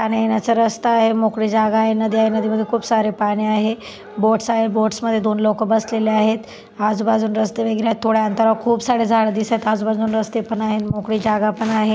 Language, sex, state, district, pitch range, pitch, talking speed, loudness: Marathi, female, Maharashtra, Chandrapur, 215-225 Hz, 220 Hz, 195 wpm, -18 LUFS